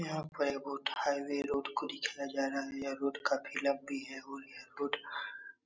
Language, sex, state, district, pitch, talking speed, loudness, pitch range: Hindi, male, Bihar, Supaul, 140 Hz, 210 wpm, -37 LUFS, 140-145 Hz